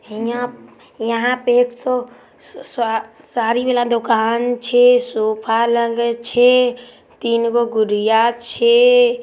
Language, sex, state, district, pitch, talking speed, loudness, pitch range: Maithili, female, Bihar, Samastipur, 235 Hz, 95 wpm, -16 LUFS, 230-245 Hz